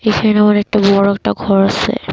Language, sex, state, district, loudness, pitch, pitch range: Bengali, female, Assam, Kamrup Metropolitan, -13 LUFS, 210 Hz, 200-215 Hz